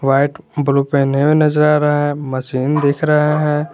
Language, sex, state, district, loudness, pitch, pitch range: Hindi, male, Jharkhand, Garhwa, -15 LUFS, 145 Hz, 140-150 Hz